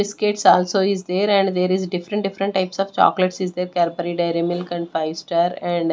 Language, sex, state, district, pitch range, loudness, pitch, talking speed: English, female, Haryana, Rohtak, 175-195 Hz, -20 LUFS, 180 Hz, 225 wpm